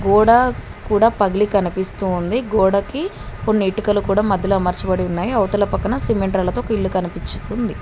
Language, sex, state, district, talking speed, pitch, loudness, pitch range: Telugu, female, Telangana, Mahabubabad, 140 wpm, 200 Hz, -18 LUFS, 190-220 Hz